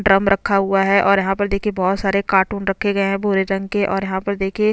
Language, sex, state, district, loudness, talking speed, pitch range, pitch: Hindi, female, Chhattisgarh, Bastar, -18 LUFS, 280 wpm, 195-200 Hz, 195 Hz